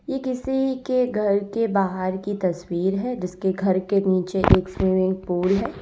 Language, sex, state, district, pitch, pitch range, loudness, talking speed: Hindi, female, Uttar Pradesh, Lalitpur, 195 Hz, 185-230 Hz, -23 LUFS, 175 wpm